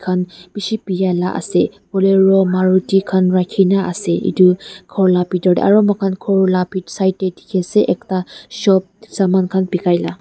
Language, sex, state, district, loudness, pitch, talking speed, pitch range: Nagamese, female, Nagaland, Dimapur, -16 LUFS, 190 Hz, 190 wpm, 180-195 Hz